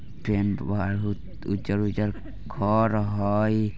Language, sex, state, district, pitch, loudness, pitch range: Bajjika, male, Bihar, Vaishali, 105 Hz, -26 LUFS, 100-105 Hz